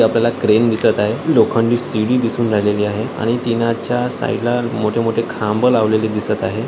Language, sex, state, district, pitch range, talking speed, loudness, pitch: Marathi, male, Maharashtra, Nagpur, 110-120 Hz, 155 wpm, -16 LUFS, 115 Hz